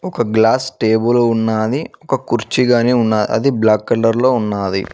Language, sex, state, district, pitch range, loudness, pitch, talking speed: Telugu, male, Telangana, Mahabubabad, 110-125 Hz, -15 LUFS, 115 Hz, 145 wpm